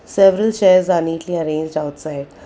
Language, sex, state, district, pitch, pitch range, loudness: English, female, Karnataka, Bangalore, 165 Hz, 155-185 Hz, -16 LUFS